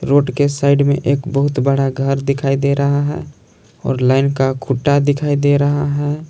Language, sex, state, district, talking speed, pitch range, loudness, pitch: Hindi, male, Jharkhand, Palamu, 190 wpm, 135-145 Hz, -16 LUFS, 140 Hz